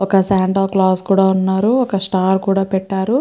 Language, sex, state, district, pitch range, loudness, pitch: Telugu, female, Andhra Pradesh, Krishna, 190-195 Hz, -15 LUFS, 195 Hz